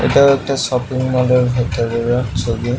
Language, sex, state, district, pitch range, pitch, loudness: Bengali, male, West Bengal, Purulia, 120-130 Hz, 125 Hz, -16 LUFS